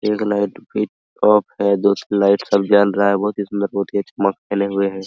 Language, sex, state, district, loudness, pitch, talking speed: Hindi, male, Bihar, Araria, -18 LUFS, 100 Hz, 210 wpm